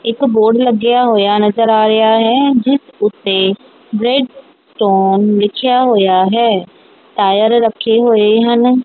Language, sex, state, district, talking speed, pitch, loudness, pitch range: Punjabi, female, Punjab, Kapurthala, 130 wpm, 225 Hz, -12 LUFS, 210-245 Hz